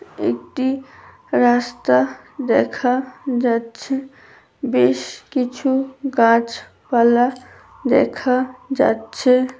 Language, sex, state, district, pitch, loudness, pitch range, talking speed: Bengali, female, West Bengal, Paschim Medinipur, 255 Hz, -19 LUFS, 235-265 Hz, 70 wpm